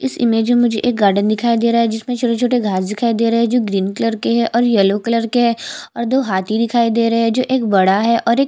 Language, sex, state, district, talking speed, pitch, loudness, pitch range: Hindi, female, Chhattisgarh, Jashpur, 150 wpm, 230 Hz, -16 LUFS, 220-240 Hz